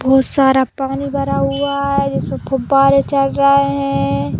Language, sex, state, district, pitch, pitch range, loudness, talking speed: Hindi, female, Uttar Pradesh, Jalaun, 275 Hz, 260-275 Hz, -15 LUFS, 150 wpm